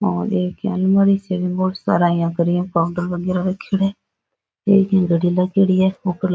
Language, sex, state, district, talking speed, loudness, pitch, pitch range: Rajasthani, female, Rajasthan, Nagaur, 200 wpm, -18 LUFS, 185 Hz, 180-195 Hz